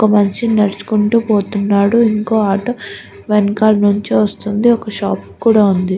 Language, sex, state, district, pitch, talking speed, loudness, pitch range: Telugu, female, Andhra Pradesh, Guntur, 210 Hz, 130 wpm, -14 LUFS, 200-215 Hz